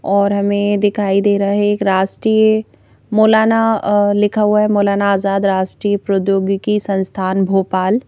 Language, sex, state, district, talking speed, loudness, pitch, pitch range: Hindi, female, Madhya Pradesh, Bhopal, 135 wpm, -15 LUFS, 205 Hz, 195-210 Hz